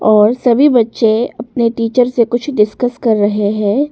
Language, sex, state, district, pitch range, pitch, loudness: Hindi, female, Arunachal Pradesh, Longding, 215-245 Hz, 230 Hz, -13 LUFS